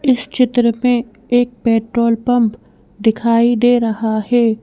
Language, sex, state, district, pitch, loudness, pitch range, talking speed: Hindi, female, Madhya Pradesh, Bhopal, 235 Hz, -15 LUFS, 225-245 Hz, 130 wpm